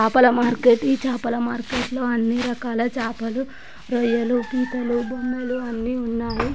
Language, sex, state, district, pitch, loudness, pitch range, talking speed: Telugu, female, Andhra Pradesh, Guntur, 245 Hz, -22 LUFS, 235-255 Hz, 110 wpm